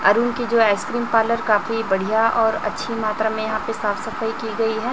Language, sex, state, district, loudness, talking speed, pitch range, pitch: Hindi, female, Chhattisgarh, Raipur, -20 LUFS, 220 wpm, 215-230 Hz, 225 Hz